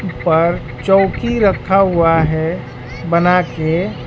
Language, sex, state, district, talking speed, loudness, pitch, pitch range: Hindi, male, Bihar, West Champaran, 90 wpm, -15 LUFS, 170 Hz, 160-190 Hz